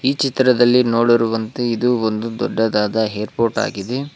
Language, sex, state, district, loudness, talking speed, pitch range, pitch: Kannada, male, Karnataka, Koppal, -18 LUFS, 115 wpm, 110-125 Hz, 115 Hz